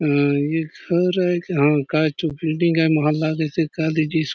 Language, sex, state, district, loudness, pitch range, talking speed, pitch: Halbi, male, Chhattisgarh, Bastar, -20 LUFS, 150-165 Hz, 165 wpm, 155 Hz